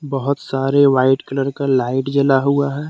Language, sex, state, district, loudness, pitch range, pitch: Hindi, male, Jharkhand, Deoghar, -17 LUFS, 135-140 Hz, 135 Hz